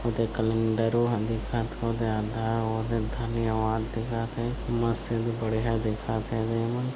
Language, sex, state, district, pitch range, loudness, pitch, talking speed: Chhattisgarhi, male, Chhattisgarh, Bilaspur, 110-115 Hz, -28 LUFS, 115 Hz, 145 wpm